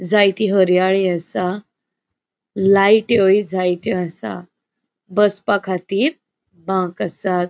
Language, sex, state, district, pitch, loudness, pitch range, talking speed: Konkani, female, Goa, North and South Goa, 190 Hz, -17 LUFS, 180-210 Hz, 70 wpm